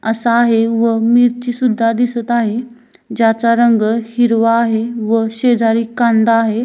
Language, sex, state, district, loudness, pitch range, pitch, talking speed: Marathi, female, Maharashtra, Dhule, -14 LUFS, 225-240 Hz, 230 Hz, 135 wpm